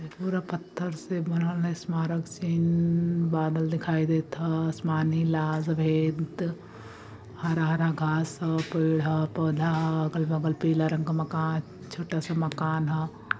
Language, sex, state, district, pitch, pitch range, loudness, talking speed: Hindi, female, Uttar Pradesh, Varanasi, 160 Hz, 160-170 Hz, -28 LUFS, 120 wpm